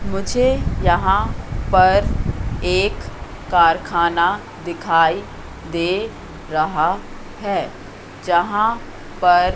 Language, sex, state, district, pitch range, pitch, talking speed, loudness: Hindi, female, Madhya Pradesh, Katni, 140-190 Hz, 170 Hz, 70 wpm, -18 LUFS